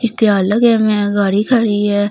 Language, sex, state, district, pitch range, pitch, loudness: Hindi, female, Delhi, New Delhi, 205-225 Hz, 210 Hz, -14 LUFS